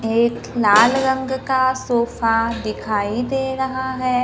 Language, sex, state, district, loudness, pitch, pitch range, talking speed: Hindi, female, Maharashtra, Gondia, -19 LUFS, 245 Hz, 225-260 Hz, 125 wpm